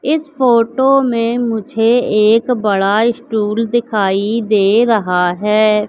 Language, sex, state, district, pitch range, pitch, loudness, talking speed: Hindi, female, Madhya Pradesh, Katni, 210-240 Hz, 225 Hz, -14 LUFS, 110 wpm